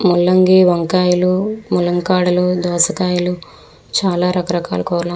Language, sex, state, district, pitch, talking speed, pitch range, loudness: Telugu, female, Andhra Pradesh, Visakhapatnam, 180 Hz, 80 wpm, 175-185 Hz, -15 LUFS